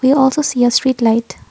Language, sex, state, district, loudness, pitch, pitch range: English, female, Assam, Kamrup Metropolitan, -14 LUFS, 260 Hz, 235-265 Hz